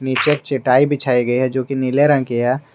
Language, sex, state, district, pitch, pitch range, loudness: Hindi, male, Jharkhand, Garhwa, 130 Hz, 125-140 Hz, -17 LUFS